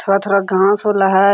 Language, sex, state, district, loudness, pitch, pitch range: Hindi, female, Jharkhand, Sahebganj, -14 LUFS, 195 Hz, 195-200 Hz